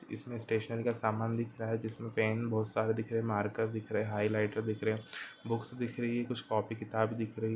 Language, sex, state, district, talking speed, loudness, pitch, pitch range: Hindi, male, Chhattisgarh, Rajnandgaon, 245 wpm, -35 LUFS, 110 Hz, 110-115 Hz